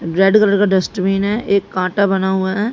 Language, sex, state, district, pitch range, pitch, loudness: Hindi, female, Haryana, Jhajjar, 190-205 Hz, 195 Hz, -15 LUFS